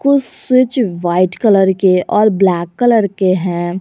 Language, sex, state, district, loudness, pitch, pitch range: Hindi, female, Jharkhand, Garhwa, -13 LUFS, 190 Hz, 180-230 Hz